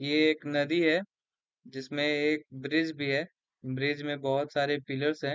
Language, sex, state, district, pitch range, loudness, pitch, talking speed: Hindi, male, Uttar Pradesh, Deoria, 140-155 Hz, -29 LUFS, 145 Hz, 170 wpm